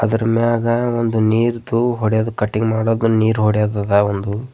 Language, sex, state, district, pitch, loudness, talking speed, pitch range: Kannada, male, Karnataka, Bidar, 115 Hz, -17 LUFS, 145 wpm, 105-115 Hz